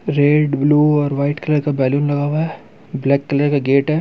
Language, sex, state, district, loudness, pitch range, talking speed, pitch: Hindi, male, Bihar, Muzaffarpur, -17 LUFS, 140-150 Hz, 225 wpm, 145 Hz